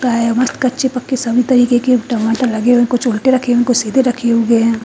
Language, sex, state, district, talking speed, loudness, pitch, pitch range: Hindi, female, Haryana, Charkhi Dadri, 245 wpm, -14 LUFS, 245 Hz, 230-250 Hz